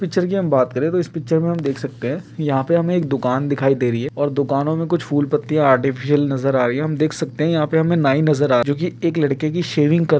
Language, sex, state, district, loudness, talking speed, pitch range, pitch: Hindi, male, Uttarakhand, Uttarkashi, -19 LUFS, 305 wpm, 135-165 Hz, 150 Hz